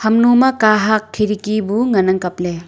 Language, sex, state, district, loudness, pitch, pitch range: Wancho, female, Arunachal Pradesh, Longding, -15 LUFS, 215 Hz, 190-220 Hz